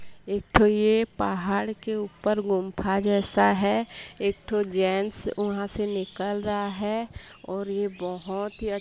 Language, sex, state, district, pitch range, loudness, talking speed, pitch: Hindi, female, Odisha, Sambalpur, 195-210 Hz, -26 LUFS, 135 wpm, 200 Hz